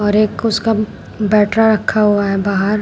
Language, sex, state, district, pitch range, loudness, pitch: Hindi, female, Uttar Pradesh, Shamli, 205-215 Hz, -15 LUFS, 210 Hz